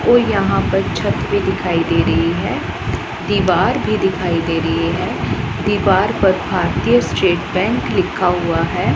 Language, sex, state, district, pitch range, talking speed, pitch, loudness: Hindi, female, Punjab, Pathankot, 165-195 Hz, 155 wpm, 170 Hz, -17 LUFS